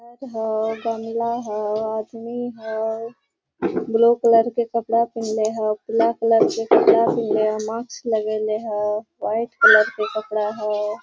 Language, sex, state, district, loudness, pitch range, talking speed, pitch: Hindi, female, Jharkhand, Sahebganj, -21 LUFS, 215-235 Hz, 125 wpm, 225 Hz